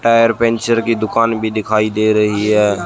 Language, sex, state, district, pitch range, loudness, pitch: Hindi, male, Haryana, Rohtak, 105-115 Hz, -15 LUFS, 110 Hz